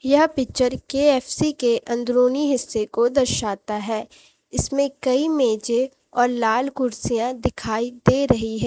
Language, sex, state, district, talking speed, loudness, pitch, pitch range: Hindi, female, Chhattisgarh, Raipur, 130 wpm, -21 LUFS, 250 Hz, 230-270 Hz